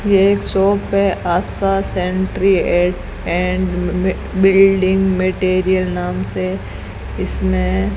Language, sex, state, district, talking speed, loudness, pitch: Hindi, female, Rajasthan, Bikaner, 100 wpm, -16 LUFS, 185 Hz